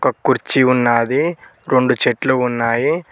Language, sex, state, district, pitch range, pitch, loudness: Telugu, male, Telangana, Mahabubabad, 120-130 Hz, 125 Hz, -16 LUFS